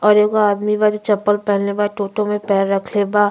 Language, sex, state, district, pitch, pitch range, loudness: Bhojpuri, female, Uttar Pradesh, Gorakhpur, 205 Hz, 200-210 Hz, -17 LUFS